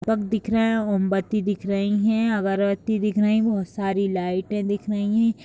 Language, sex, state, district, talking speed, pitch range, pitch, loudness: Hindi, female, Uttar Pradesh, Jalaun, 185 wpm, 200-220 Hz, 205 Hz, -23 LUFS